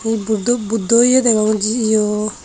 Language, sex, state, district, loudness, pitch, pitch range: Chakma, female, Tripura, Unakoti, -15 LUFS, 220 Hz, 215-230 Hz